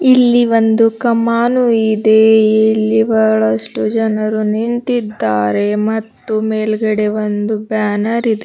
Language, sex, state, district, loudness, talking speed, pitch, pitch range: Kannada, female, Karnataka, Bidar, -14 LUFS, 90 wpm, 220 Hz, 215-225 Hz